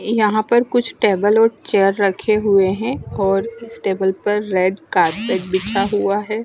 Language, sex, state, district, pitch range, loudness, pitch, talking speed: Hindi, female, Chandigarh, Chandigarh, 195-220 Hz, -17 LUFS, 205 Hz, 165 wpm